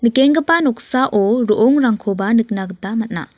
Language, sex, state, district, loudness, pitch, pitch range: Garo, female, Meghalaya, West Garo Hills, -15 LUFS, 230 Hz, 205-260 Hz